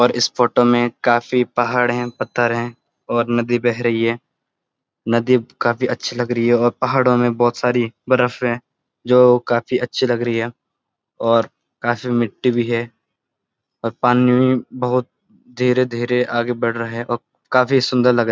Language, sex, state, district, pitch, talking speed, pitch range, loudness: Hindi, male, Uttarakhand, Uttarkashi, 120 Hz, 170 wpm, 120-125 Hz, -18 LUFS